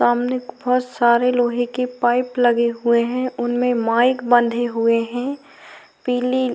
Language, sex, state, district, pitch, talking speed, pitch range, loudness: Hindi, female, Uttar Pradesh, Hamirpur, 245 Hz, 145 wpm, 235-250 Hz, -19 LUFS